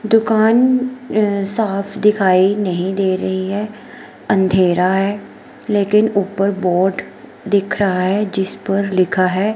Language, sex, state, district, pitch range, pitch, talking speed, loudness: Hindi, female, Himachal Pradesh, Shimla, 190-210 Hz, 200 Hz, 125 wpm, -16 LUFS